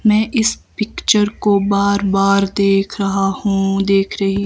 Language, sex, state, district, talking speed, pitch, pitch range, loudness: Hindi, male, Himachal Pradesh, Shimla, 150 wpm, 200 Hz, 195-210 Hz, -16 LUFS